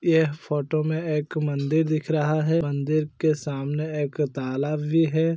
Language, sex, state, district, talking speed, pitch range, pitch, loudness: Hindi, male, Chhattisgarh, Korba, 165 wpm, 145-160 Hz, 155 Hz, -25 LUFS